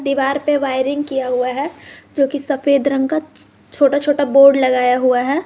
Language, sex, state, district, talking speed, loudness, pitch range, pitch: Hindi, female, Jharkhand, Garhwa, 175 wpm, -16 LUFS, 265-285 Hz, 275 Hz